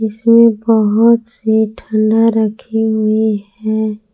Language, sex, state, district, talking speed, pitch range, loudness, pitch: Hindi, female, Jharkhand, Palamu, 100 wpm, 215-225 Hz, -13 LUFS, 220 Hz